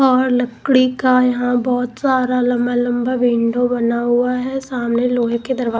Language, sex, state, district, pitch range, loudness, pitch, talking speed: Hindi, female, Punjab, Pathankot, 240-255 Hz, -17 LUFS, 245 Hz, 165 wpm